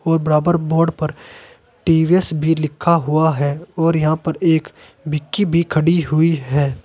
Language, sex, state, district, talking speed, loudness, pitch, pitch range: Hindi, male, Uttar Pradesh, Saharanpur, 160 wpm, -17 LUFS, 160 Hz, 155-170 Hz